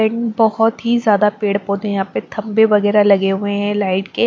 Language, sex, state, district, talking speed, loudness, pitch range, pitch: Hindi, female, Maharashtra, Mumbai Suburban, 195 wpm, -16 LUFS, 200-220 Hz, 210 Hz